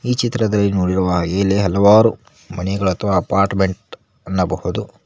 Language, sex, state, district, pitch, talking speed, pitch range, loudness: Kannada, male, Karnataka, Koppal, 100 Hz, 120 wpm, 95-105 Hz, -17 LUFS